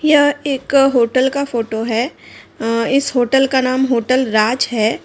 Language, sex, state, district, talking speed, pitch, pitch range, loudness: Hindi, female, Bihar, Madhepura, 165 wpm, 255 Hz, 230-275 Hz, -16 LUFS